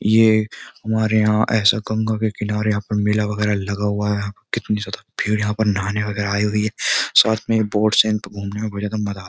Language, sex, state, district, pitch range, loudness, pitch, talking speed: Hindi, male, Uttar Pradesh, Jyotiba Phule Nagar, 105-110 Hz, -19 LUFS, 105 Hz, 225 wpm